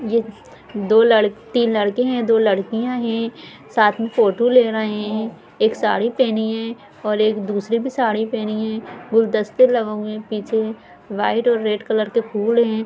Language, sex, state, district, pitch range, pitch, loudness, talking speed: Hindi, female, Bihar, Jahanabad, 215-230 Hz, 220 Hz, -19 LUFS, 175 wpm